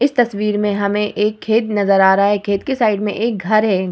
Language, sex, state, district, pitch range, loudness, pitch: Hindi, female, Bihar, Vaishali, 200-220 Hz, -16 LUFS, 210 Hz